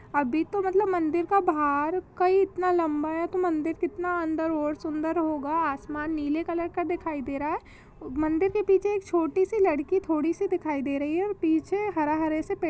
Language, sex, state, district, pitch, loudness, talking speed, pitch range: Hindi, female, Chhattisgarh, Rajnandgaon, 330 Hz, -27 LUFS, 215 wpm, 310-365 Hz